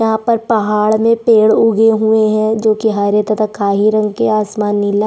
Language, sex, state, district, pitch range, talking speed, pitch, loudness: Hindi, female, Chhattisgarh, Sukma, 210-220 Hz, 190 wpm, 215 Hz, -13 LUFS